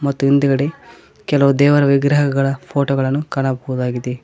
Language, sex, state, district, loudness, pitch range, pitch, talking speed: Kannada, male, Karnataka, Koppal, -16 LUFS, 135-140 Hz, 140 Hz, 115 wpm